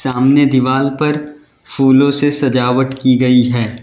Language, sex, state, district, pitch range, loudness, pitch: Hindi, male, Uttar Pradesh, Lalitpur, 125-140 Hz, -13 LUFS, 135 Hz